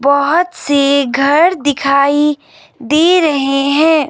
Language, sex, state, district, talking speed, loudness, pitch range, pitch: Hindi, female, Himachal Pradesh, Shimla, 100 wpm, -12 LUFS, 280-320 Hz, 290 Hz